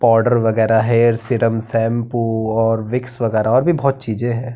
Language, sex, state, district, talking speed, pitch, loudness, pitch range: Hindi, male, Uttarakhand, Tehri Garhwal, 170 wpm, 115 Hz, -17 LUFS, 115-120 Hz